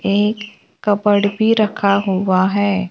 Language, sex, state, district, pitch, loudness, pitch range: Hindi, male, Maharashtra, Gondia, 205 Hz, -16 LUFS, 200-210 Hz